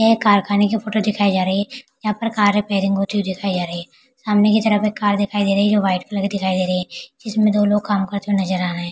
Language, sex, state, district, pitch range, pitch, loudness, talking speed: Hindi, female, Chhattisgarh, Balrampur, 195-210 Hz, 205 Hz, -18 LUFS, 310 wpm